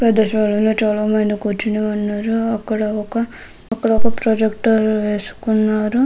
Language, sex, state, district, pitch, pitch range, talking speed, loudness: Telugu, female, Andhra Pradesh, Krishna, 215 Hz, 210-225 Hz, 120 wpm, -18 LUFS